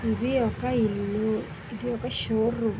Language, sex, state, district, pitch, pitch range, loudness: Telugu, female, Andhra Pradesh, Visakhapatnam, 225 Hz, 220-235 Hz, -27 LUFS